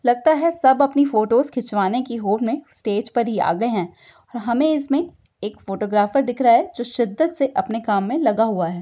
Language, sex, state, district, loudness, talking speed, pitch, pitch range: Hindi, female, Uttar Pradesh, Budaun, -20 LUFS, 220 wpm, 240 Hz, 210-280 Hz